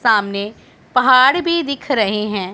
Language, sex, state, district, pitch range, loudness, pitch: Hindi, female, Punjab, Pathankot, 205-270 Hz, -16 LUFS, 230 Hz